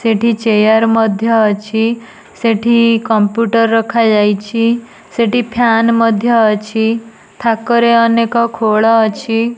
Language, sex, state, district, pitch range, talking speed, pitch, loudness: Odia, female, Odisha, Nuapada, 220-230 Hz, 95 wpm, 225 Hz, -12 LUFS